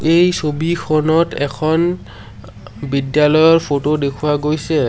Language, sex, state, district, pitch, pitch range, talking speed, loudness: Assamese, male, Assam, Sonitpur, 150 Hz, 140-160 Hz, 85 wpm, -16 LUFS